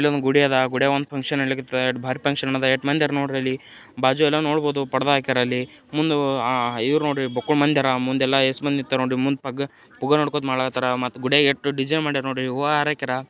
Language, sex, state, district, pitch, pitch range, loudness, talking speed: Kannada, male, Karnataka, Gulbarga, 135 Hz, 130-145 Hz, -21 LUFS, 225 wpm